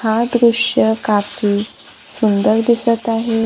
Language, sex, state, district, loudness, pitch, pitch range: Marathi, female, Maharashtra, Gondia, -15 LUFS, 225 Hz, 215-230 Hz